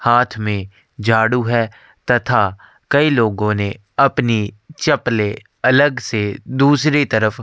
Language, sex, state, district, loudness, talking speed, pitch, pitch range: Hindi, male, Chhattisgarh, Korba, -17 LUFS, 115 wpm, 115 Hz, 105-135 Hz